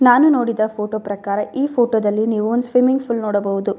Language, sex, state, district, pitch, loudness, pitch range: Kannada, female, Karnataka, Bellary, 220 Hz, -18 LUFS, 210-245 Hz